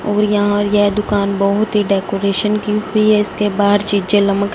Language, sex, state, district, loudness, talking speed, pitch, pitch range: Hindi, female, Punjab, Fazilka, -15 LUFS, 185 wpm, 205 Hz, 200-210 Hz